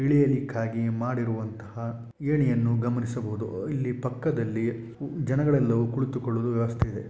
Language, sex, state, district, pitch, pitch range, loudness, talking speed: Kannada, male, Karnataka, Shimoga, 120 Hz, 115-135 Hz, -27 LUFS, 95 wpm